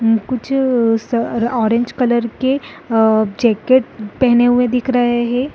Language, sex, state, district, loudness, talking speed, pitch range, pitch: Hindi, female, Chhattisgarh, Rajnandgaon, -16 LUFS, 120 wpm, 225-255 Hz, 240 Hz